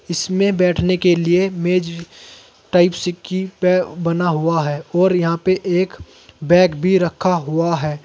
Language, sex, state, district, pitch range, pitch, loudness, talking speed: Hindi, male, Uttar Pradesh, Saharanpur, 170-185 Hz, 175 Hz, -17 LUFS, 155 wpm